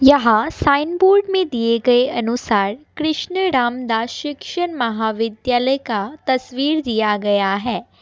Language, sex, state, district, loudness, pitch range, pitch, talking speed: Hindi, female, Assam, Kamrup Metropolitan, -18 LUFS, 225-295 Hz, 245 Hz, 120 wpm